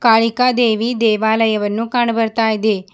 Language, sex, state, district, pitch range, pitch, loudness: Kannada, female, Karnataka, Bidar, 220-235 Hz, 225 Hz, -16 LUFS